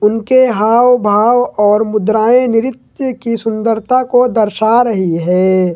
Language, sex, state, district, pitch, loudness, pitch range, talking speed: Hindi, male, Jharkhand, Ranchi, 225 Hz, -12 LUFS, 210-245 Hz, 125 wpm